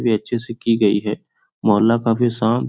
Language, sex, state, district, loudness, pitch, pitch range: Hindi, male, Bihar, Supaul, -18 LUFS, 115 Hz, 105-115 Hz